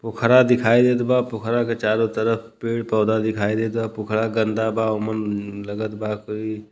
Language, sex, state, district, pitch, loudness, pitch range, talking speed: Bhojpuri, male, Uttar Pradesh, Deoria, 110 Hz, -21 LUFS, 110-115 Hz, 170 wpm